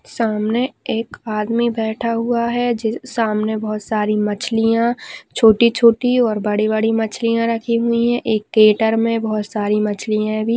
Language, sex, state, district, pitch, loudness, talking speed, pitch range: Hindi, female, Maharashtra, Solapur, 225 Hz, -18 LUFS, 150 wpm, 215-235 Hz